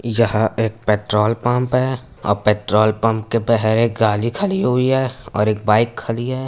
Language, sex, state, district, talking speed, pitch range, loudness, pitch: Hindi, male, Uttar Pradesh, Etah, 175 wpm, 105-125 Hz, -18 LUFS, 115 Hz